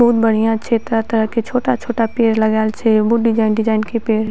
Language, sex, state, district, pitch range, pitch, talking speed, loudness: Maithili, female, Bihar, Purnia, 220-230 Hz, 225 Hz, 210 wpm, -16 LUFS